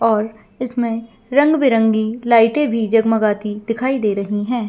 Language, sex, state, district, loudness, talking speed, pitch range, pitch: Hindi, female, Jharkhand, Jamtara, -17 LUFS, 155 wpm, 215-245 Hz, 225 Hz